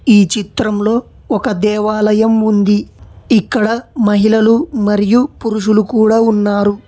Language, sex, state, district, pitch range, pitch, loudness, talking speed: Telugu, male, Telangana, Hyderabad, 210-225 Hz, 215 Hz, -13 LUFS, 95 wpm